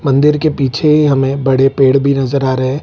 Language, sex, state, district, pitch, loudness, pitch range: Hindi, male, Bihar, Gaya, 135 Hz, -12 LUFS, 135-145 Hz